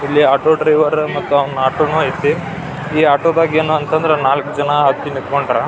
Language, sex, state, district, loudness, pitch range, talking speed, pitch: Kannada, male, Karnataka, Belgaum, -15 LUFS, 140-155 Hz, 180 wpm, 150 Hz